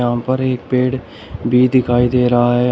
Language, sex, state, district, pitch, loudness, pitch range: Hindi, male, Uttar Pradesh, Shamli, 125 Hz, -15 LUFS, 120-125 Hz